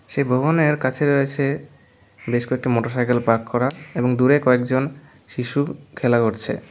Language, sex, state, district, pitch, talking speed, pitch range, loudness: Bengali, male, West Bengal, Alipurduar, 130 Hz, 135 wpm, 120-140 Hz, -20 LUFS